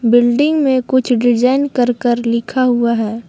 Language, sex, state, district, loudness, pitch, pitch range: Hindi, female, Jharkhand, Palamu, -14 LUFS, 245 Hz, 235-260 Hz